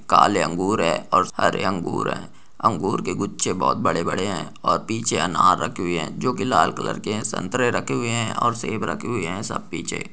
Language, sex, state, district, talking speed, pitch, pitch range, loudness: Hindi, male, Bihar, Gopalganj, 215 wpm, 110 Hz, 90-115 Hz, -22 LUFS